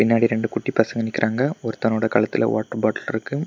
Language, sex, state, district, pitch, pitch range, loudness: Tamil, male, Tamil Nadu, Kanyakumari, 115 Hz, 110-115 Hz, -22 LUFS